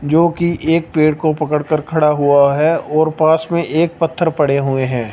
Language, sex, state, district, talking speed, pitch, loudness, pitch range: Hindi, male, Punjab, Fazilka, 200 wpm, 155 Hz, -15 LUFS, 145-165 Hz